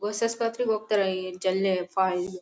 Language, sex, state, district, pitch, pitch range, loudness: Kannada, female, Karnataka, Bellary, 190 Hz, 185-215 Hz, -27 LUFS